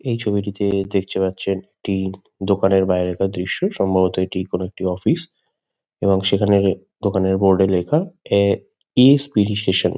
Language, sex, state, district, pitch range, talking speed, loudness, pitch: Bengali, male, West Bengal, Kolkata, 95-100 Hz, 140 wpm, -19 LUFS, 95 Hz